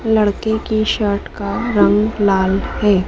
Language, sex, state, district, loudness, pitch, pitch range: Hindi, female, Madhya Pradesh, Dhar, -17 LUFS, 210 Hz, 200-220 Hz